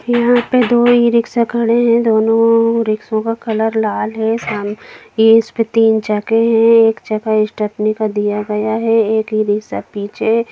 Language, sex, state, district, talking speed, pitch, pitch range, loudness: Hindi, female, Bihar, Jamui, 175 wpm, 225 Hz, 215-230 Hz, -14 LUFS